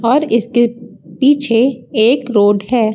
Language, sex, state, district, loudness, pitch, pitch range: Hindi, female, Uttar Pradesh, Lucknow, -13 LUFS, 235 Hz, 220-255 Hz